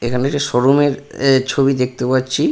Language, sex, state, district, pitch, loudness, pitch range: Bengali, male, West Bengal, Purulia, 135 Hz, -16 LUFS, 125-140 Hz